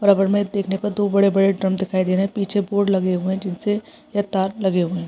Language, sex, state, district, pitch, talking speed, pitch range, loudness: Hindi, male, Uttarakhand, Tehri Garhwal, 195 Hz, 285 wpm, 190-205 Hz, -20 LUFS